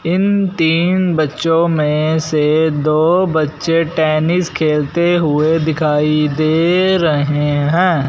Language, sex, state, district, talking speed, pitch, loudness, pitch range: Hindi, male, Punjab, Fazilka, 105 wpm, 160 Hz, -14 LUFS, 150-170 Hz